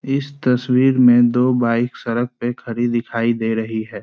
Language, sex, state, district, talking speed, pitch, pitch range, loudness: Hindi, male, Bihar, Saran, 180 wpm, 120 Hz, 115-125 Hz, -18 LUFS